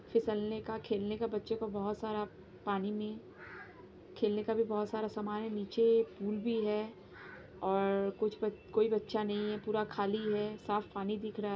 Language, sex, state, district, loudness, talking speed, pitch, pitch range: Hindi, female, Bihar, Jahanabad, -35 LUFS, 185 wpm, 210 Hz, 205-220 Hz